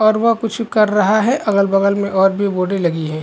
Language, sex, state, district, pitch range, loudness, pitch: Hindi, male, Chhattisgarh, Korba, 195-215 Hz, -16 LUFS, 200 Hz